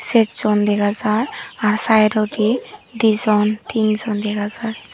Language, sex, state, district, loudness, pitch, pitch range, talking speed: Chakma, female, Tripura, Dhalai, -18 LUFS, 215 Hz, 210-225 Hz, 160 wpm